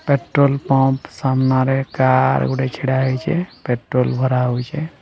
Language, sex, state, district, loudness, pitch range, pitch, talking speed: Odia, male, Odisha, Sambalpur, -18 LUFS, 130-140 Hz, 130 Hz, 120 wpm